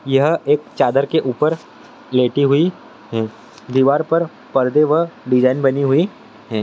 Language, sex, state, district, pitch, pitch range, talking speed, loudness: Hindi, male, Andhra Pradesh, Guntur, 140 Hz, 130-155 Hz, 145 wpm, -17 LUFS